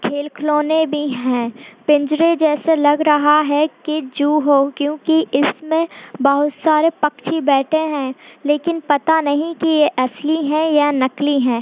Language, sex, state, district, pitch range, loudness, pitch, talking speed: Hindi, female, Bihar, Purnia, 285-315 Hz, -17 LUFS, 295 Hz, 150 wpm